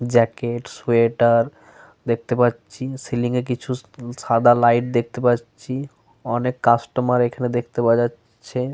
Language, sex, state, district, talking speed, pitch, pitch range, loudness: Bengali, male, Jharkhand, Sahebganj, 115 wpm, 120 Hz, 115-125 Hz, -20 LUFS